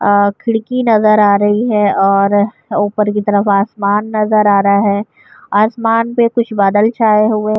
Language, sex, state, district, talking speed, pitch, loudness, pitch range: Urdu, female, Uttar Pradesh, Budaun, 175 wpm, 210 Hz, -13 LUFS, 205-220 Hz